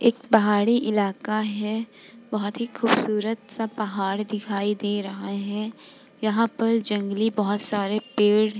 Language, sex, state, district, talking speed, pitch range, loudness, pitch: Hindi, female, Bihar, Vaishali, 145 wpm, 205-225 Hz, -24 LUFS, 215 Hz